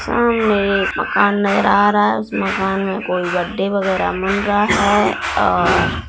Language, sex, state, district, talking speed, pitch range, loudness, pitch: Hindi, female, Bihar, Darbhanga, 170 wpm, 190-205 Hz, -16 LUFS, 200 Hz